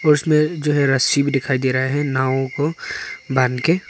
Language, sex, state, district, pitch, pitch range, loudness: Hindi, male, Arunachal Pradesh, Papum Pare, 140 Hz, 130-150 Hz, -19 LUFS